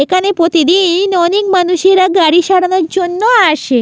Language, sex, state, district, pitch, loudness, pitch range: Bengali, female, West Bengal, Jalpaiguri, 365 Hz, -10 LUFS, 345-380 Hz